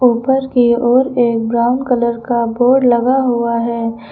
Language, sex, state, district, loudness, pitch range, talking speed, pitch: Hindi, female, Uttar Pradesh, Lucknow, -14 LUFS, 235-250 Hz, 160 wpm, 240 Hz